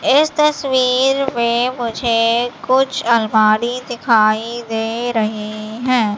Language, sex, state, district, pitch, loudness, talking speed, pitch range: Hindi, female, Madhya Pradesh, Katni, 235 Hz, -16 LUFS, 95 wpm, 225-255 Hz